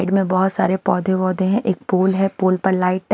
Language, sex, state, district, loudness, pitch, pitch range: Hindi, female, Himachal Pradesh, Shimla, -18 LUFS, 190 Hz, 185-195 Hz